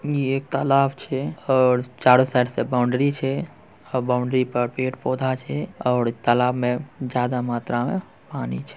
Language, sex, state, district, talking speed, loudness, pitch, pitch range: Hindi, male, Bihar, Purnia, 155 wpm, -22 LUFS, 125 Hz, 125-135 Hz